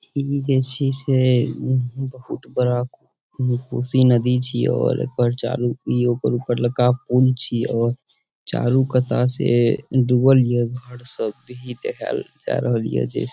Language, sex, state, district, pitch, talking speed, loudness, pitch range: Maithili, male, Bihar, Saharsa, 125 Hz, 150 wpm, -20 LUFS, 120-130 Hz